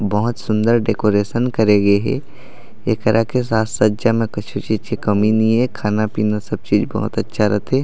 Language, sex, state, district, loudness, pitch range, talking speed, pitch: Chhattisgarhi, male, Chhattisgarh, Raigarh, -18 LUFS, 105-115 Hz, 170 wpm, 110 Hz